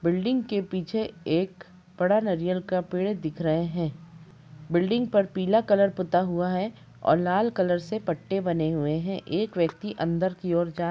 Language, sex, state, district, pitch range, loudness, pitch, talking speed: Hindi, female, Bihar, Sitamarhi, 170-195 Hz, -26 LUFS, 180 Hz, 180 wpm